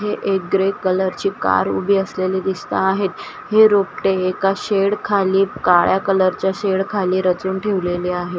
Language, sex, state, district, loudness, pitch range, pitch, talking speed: Marathi, female, Maharashtra, Washim, -18 LUFS, 185-195 Hz, 190 Hz, 145 wpm